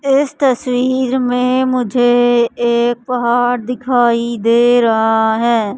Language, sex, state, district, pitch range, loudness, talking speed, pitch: Hindi, female, Madhya Pradesh, Katni, 235-255 Hz, -14 LUFS, 105 wpm, 245 Hz